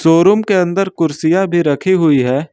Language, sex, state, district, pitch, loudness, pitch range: Hindi, male, Jharkhand, Ranchi, 170 Hz, -13 LUFS, 160-190 Hz